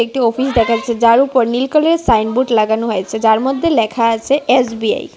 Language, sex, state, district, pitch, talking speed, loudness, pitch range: Bengali, female, Tripura, West Tripura, 235 Hz, 185 wpm, -14 LUFS, 225-265 Hz